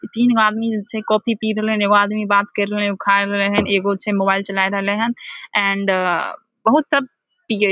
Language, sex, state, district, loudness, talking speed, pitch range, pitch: Maithili, female, Bihar, Samastipur, -17 LUFS, 240 wpm, 200-220 Hz, 205 Hz